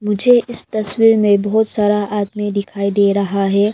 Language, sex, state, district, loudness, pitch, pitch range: Hindi, female, Arunachal Pradesh, Lower Dibang Valley, -15 LUFS, 205 Hz, 200-215 Hz